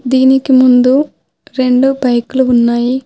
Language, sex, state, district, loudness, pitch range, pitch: Telugu, female, Telangana, Hyderabad, -11 LUFS, 250-265 Hz, 255 Hz